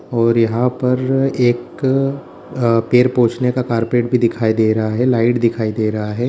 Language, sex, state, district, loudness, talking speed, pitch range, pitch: Hindi, male, Bihar, Jamui, -16 LUFS, 180 wpm, 115-125 Hz, 120 Hz